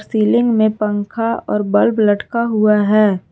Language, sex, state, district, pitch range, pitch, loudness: Hindi, female, Jharkhand, Garhwa, 205-225 Hz, 215 Hz, -15 LUFS